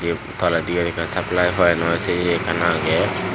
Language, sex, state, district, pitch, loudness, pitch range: Chakma, male, Tripura, Dhalai, 85 Hz, -20 LUFS, 85-90 Hz